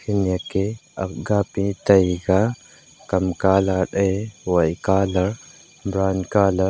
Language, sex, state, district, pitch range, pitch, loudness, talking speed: Wancho, male, Arunachal Pradesh, Longding, 95-100 Hz, 95 Hz, -21 LUFS, 105 wpm